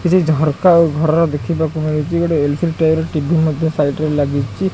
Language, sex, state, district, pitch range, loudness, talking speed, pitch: Odia, male, Odisha, Khordha, 150-165 Hz, -16 LUFS, 140 wpm, 160 Hz